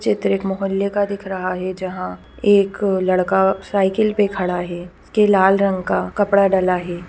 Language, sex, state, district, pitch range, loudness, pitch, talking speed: Hindi, female, Bihar, Gopalganj, 185-200 Hz, -18 LUFS, 190 Hz, 180 wpm